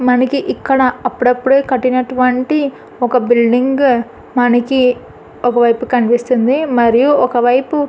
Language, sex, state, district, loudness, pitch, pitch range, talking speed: Telugu, female, Andhra Pradesh, Anantapur, -13 LUFS, 250 Hz, 245-265 Hz, 85 wpm